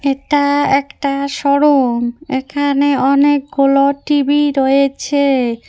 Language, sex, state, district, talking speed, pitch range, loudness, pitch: Bengali, female, West Bengal, Cooch Behar, 75 wpm, 275-285 Hz, -14 LUFS, 280 Hz